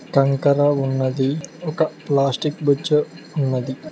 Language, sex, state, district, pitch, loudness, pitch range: Telugu, male, Telangana, Mahabubabad, 140 Hz, -20 LUFS, 135-150 Hz